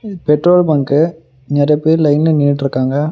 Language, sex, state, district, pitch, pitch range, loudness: Tamil, male, Tamil Nadu, Namakkal, 150 Hz, 145-160 Hz, -13 LUFS